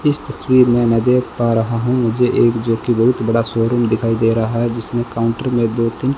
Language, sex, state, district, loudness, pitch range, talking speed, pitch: Hindi, male, Rajasthan, Bikaner, -16 LUFS, 115-125 Hz, 245 wpm, 115 Hz